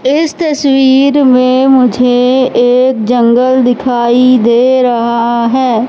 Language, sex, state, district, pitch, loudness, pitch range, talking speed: Hindi, female, Madhya Pradesh, Katni, 255 Hz, -9 LUFS, 245-260 Hz, 100 wpm